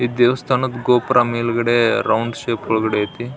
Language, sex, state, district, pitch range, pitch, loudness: Kannada, male, Karnataka, Belgaum, 115-125 Hz, 120 Hz, -18 LUFS